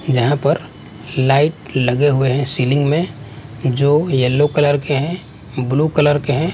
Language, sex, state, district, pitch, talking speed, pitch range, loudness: Hindi, male, Bihar, West Champaran, 140 Hz, 155 wpm, 130-145 Hz, -16 LUFS